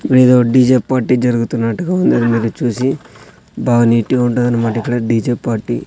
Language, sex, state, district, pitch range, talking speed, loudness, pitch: Telugu, male, Andhra Pradesh, Sri Satya Sai, 115-125 Hz, 175 wpm, -14 LUFS, 120 Hz